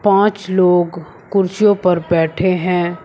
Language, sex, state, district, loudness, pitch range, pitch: Hindi, male, Uttar Pradesh, Shamli, -15 LUFS, 175-195 Hz, 180 Hz